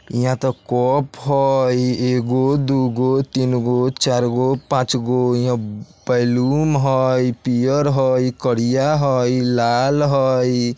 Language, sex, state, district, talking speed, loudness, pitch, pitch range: Bajjika, male, Bihar, Vaishali, 100 wpm, -18 LUFS, 130 Hz, 125-135 Hz